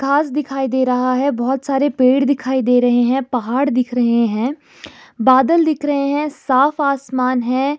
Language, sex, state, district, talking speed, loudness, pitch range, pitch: Hindi, female, Himachal Pradesh, Shimla, 175 wpm, -16 LUFS, 250-280 Hz, 265 Hz